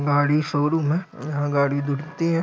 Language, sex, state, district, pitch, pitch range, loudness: Hindi, male, Chhattisgarh, Korba, 150 Hz, 145-160 Hz, -23 LUFS